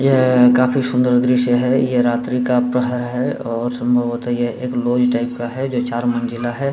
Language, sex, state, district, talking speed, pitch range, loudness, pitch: Hindi, male, Bihar, Saran, 195 wpm, 120-125 Hz, -17 LUFS, 125 Hz